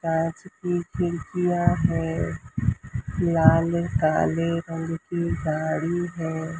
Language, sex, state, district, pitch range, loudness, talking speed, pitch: Hindi, female, Maharashtra, Mumbai Suburban, 160-175 Hz, -25 LUFS, 90 wpm, 165 Hz